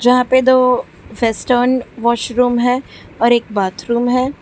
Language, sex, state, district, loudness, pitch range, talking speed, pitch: Hindi, female, Gujarat, Valsad, -15 LUFS, 235-255 Hz, 135 wpm, 245 Hz